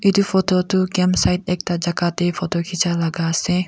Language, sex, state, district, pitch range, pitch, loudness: Nagamese, female, Nagaland, Kohima, 175-185 Hz, 180 Hz, -19 LUFS